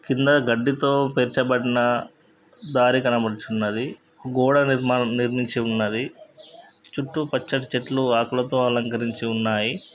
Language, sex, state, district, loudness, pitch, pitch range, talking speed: Telugu, male, Andhra Pradesh, Guntur, -22 LUFS, 125 Hz, 120-135 Hz, 90 wpm